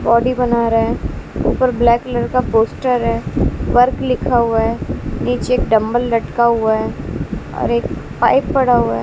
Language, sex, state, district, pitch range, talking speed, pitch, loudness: Hindi, female, Bihar, West Champaran, 225-250 Hz, 160 wpm, 235 Hz, -16 LUFS